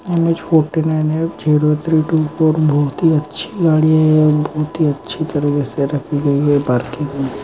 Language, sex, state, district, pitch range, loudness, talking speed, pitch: Hindi, male, Maharashtra, Nagpur, 145-160 Hz, -16 LUFS, 185 wpm, 155 Hz